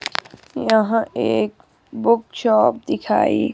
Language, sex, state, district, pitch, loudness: Hindi, female, Himachal Pradesh, Shimla, 220 Hz, -19 LUFS